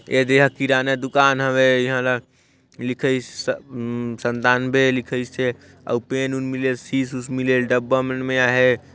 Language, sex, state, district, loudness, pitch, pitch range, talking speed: Chhattisgarhi, male, Chhattisgarh, Sarguja, -20 LUFS, 130 Hz, 125-130 Hz, 145 wpm